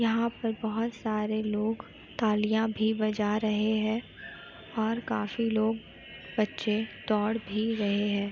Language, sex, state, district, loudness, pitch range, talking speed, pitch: Hindi, female, Uttar Pradesh, Etah, -30 LUFS, 210-225 Hz, 130 wpm, 215 Hz